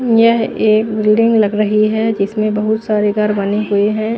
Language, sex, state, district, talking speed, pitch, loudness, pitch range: Hindi, female, Chandigarh, Chandigarh, 185 wpm, 215 Hz, -14 LUFS, 210-220 Hz